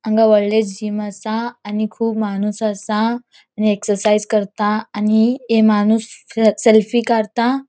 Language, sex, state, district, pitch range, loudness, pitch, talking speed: Konkani, female, Goa, North and South Goa, 210-225 Hz, -17 LUFS, 215 Hz, 115 wpm